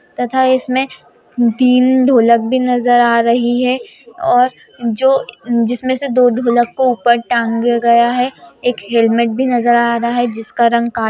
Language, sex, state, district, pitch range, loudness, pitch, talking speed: Hindi, female, Bihar, Muzaffarpur, 235-255 Hz, -14 LUFS, 240 Hz, 165 wpm